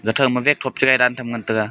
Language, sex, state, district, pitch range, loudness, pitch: Wancho, male, Arunachal Pradesh, Longding, 115-130 Hz, -18 LUFS, 125 Hz